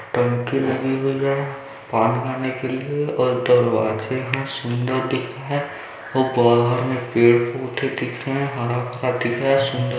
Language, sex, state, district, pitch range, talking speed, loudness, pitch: Hindi, male, Chhattisgarh, Balrampur, 120-135 Hz, 175 wpm, -21 LUFS, 130 Hz